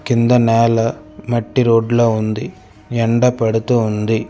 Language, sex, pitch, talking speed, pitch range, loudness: Telugu, male, 115 Hz, 125 wpm, 110-120 Hz, -16 LUFS